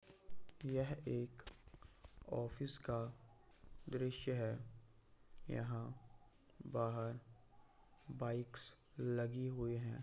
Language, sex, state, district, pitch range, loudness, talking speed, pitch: Hindi, male, Bihar, Samastipur, 115-130 Hz, -45 LUFS, 70 wpm, 120 Hz